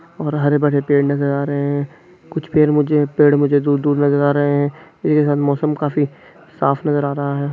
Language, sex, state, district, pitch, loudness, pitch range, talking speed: Hindi, male, Chhattisgarh, Kabirdham, 145 Hz, -17 LUFS, 145-150 Hz, 205 wpm